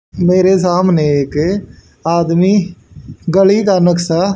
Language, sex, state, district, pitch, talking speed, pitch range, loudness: Hindi, male, Haryana, Charkhi Dadri, 180 Hz, 95 wpm, 170-190 Hz, -13 LUFS